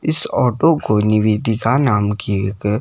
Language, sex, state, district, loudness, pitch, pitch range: Hindi, male, Himachal Pradesh, Shimla, -16 LUFS, 105 Hz, 105-110 Hz